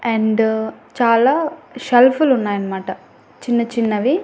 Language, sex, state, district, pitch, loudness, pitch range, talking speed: Telugu, female, Andhra Pradesh, Annamaya, 230 Hz, -17 LUFS, 220-255 Hz, 115 wpm